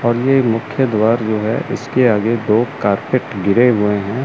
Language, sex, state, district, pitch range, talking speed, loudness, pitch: Hindi, male, Chandigarh, Chandigarh, 105-125 Hz, 185 wpm, -16 LUFS, 115 Hz